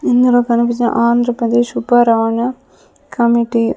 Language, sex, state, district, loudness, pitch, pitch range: Telugu, female, Andhra Pradesh, Sri Satya Sai, -14 LUFS, 240 Hz, 235-245 Hz